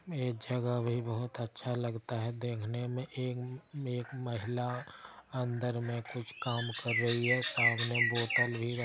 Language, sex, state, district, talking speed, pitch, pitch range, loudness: Maithili, male, Bihar, Darbhanga, 165 wpm, 120 Hz, 120-125 Hz, -34 LUFS